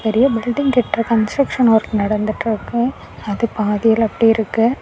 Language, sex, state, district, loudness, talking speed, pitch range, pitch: Tamil, female, Tamil Nadu, Kanyakumari, -17 LUFS, 135 wpm, 215-240 Hz, 225 Hz